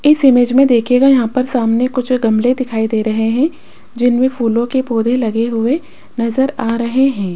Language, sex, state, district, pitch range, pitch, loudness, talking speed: Hindi, female, Rajasthan, Jaipur, 230-260 Hz, 245 Hz, -14 LUFS, 185 wpm